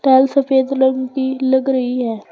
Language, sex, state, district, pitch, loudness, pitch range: Hindi, female, Uttar Pradesh, Saharanpur, 265 Hz, -16 LUFS, 260-265 Hz